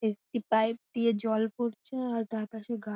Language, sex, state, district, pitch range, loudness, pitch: Bengali, female, West Bengal, Paschim Medinipur, 220-235 Hz, -31 LUFS, 225 Hz